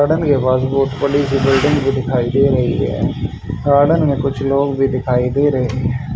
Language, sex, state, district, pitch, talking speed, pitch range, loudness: Hindi, male, Haryana, Charkhi Dadri, 135 Hz, 205 wpm, 130-140 Hz, -16 LUFS